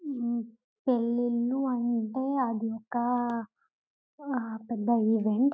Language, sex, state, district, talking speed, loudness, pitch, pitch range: Telugu, female, Telangana, Karimnagar, 85 wpm, -29 LUFS, 240 Hz, 225-255 Hz